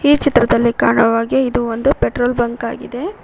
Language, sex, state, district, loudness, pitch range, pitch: Kannada, female, Karnataka, Koppal, -16 LUFS, 230-275 Hz, 245 Hz